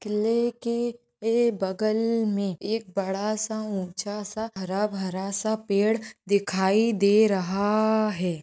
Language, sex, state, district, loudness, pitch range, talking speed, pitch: Hindi, female, Maharashtra, Sindhudurg, -26 LUFS, 195-220 Hz, 105 wpm, 210 Hz